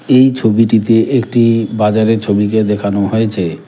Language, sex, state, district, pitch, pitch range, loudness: Bengali, male, West Bengal, Cooch Behar, 110 Hz, 105-115 Hz, -12 LUFS